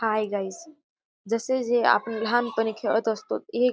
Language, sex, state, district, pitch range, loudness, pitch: Marathi, female, Maharashtra, Dhule, 220-240 Hz, -25 LUFS, 225 Hz